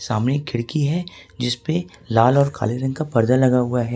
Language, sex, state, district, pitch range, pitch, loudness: Hindi, male, Jharkhand, Ranchi, 120-145 Hz, 125 Hz, -20 LUFS